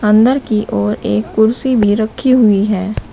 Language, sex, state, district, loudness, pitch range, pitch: Hindi, male, Uttar Pradesh, Shamli, -13 LUFS, 200-240 Hz, 215 Hz